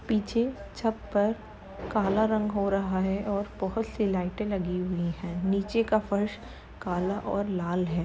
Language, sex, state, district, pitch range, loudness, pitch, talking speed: Hindi, female, Uttar Pradesh, Jalaun, 185-215 Hz, -29 LUFS, 200 Hz, 165 wpm